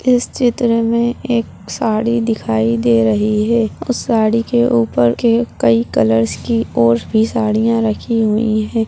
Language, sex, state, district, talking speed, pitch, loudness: Hindi, male, Bihar, Samastipur, 155 wpm, 225 Hz, -15 LUFS